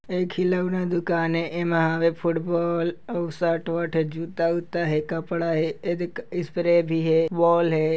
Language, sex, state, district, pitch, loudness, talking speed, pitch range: Chhattisgarhi, female, Chhattisgarh, Kabirdham, 170 Hz, -24 LUFS, 165 wpm, 165-175 Hz